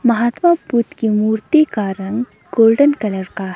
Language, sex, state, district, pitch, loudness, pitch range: Hindi, female, Himachal Pradesh, Shimla, 225 Hz, -16 LUFS, 205-260 Hz